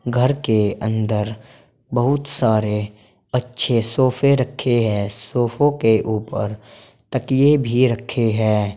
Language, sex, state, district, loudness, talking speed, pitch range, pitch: Hindi, male, Uttar Pradesh, Saharanpur, -19 LUFS, 110 wpm, 110-130 Hz, 115 Hz